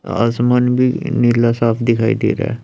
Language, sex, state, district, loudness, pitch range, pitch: Hindi, male, Chandigarh, Chandigarh, -15 LUFS, 115-125 Hz, 115 Hz